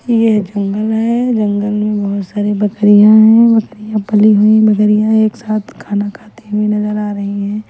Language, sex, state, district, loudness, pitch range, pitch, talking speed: Hindi, female, Punjab, Fazilka, -12 LUFS, 205-220 Hz, 210 Hz, 180 wpm